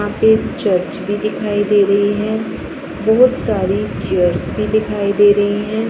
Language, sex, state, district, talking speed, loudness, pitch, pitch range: Hindi, female, Punjab, Pathankot, 165 wpm, -16 LUFS, 205 Hz, 200-215 Hz